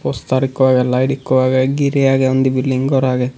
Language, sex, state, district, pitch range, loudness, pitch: Chakma, male, Tripura, Unakoti, 130-135 Hz, -15 LUFS, 130 Hz